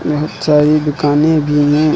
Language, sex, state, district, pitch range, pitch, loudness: Hindi, male, Uttar Pradesh, Lucknow, 145-155 Hz, 150 Hz, -13 LUFS